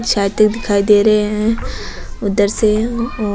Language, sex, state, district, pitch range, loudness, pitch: Rajasthani, female, Rajasthan, Nagaur, 205-220 Hz, -15 LUFS, 210 Hz